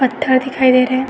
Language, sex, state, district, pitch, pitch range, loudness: Hindi, female, Uttar Pradesh, Etah, 260 Hz, 255-260 Hz, -14 LUFS